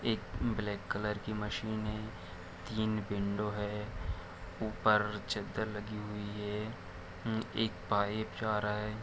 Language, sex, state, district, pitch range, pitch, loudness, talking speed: Hindi, male, Jharkhand, Jamtara, 100-110 Hz, 105 Hz, -36 LUFS, 125 wpm